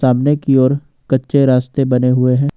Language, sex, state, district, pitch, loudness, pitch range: Hindi, male, Jharkhand, Ranchi, 130 Hz, -14 LUFS, 125-140 Hz